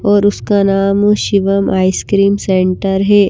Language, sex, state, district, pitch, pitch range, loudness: Hindi, female, Himachal Pradesh, Shimla, 200 Hz, 195-205 Hz, -13 LUFS